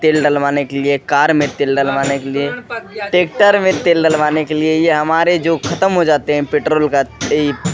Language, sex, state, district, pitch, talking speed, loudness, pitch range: Hindi, male, Bihar, Kishanganj, 155 Hz, 210 wpm, -14 LUFS, 140-165 Hz